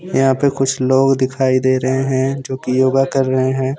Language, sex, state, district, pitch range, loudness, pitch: Hindi, male, Jharkhand, Deoghar, 130-135 Hz, -16 LUFS, 130 Hz